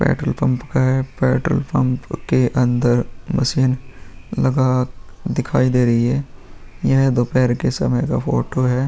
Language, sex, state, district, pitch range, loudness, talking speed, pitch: Hindi, male, Bihar, Vaishali, 115-130 Hz, -19 LUFS, 150 wpm, 125 Hz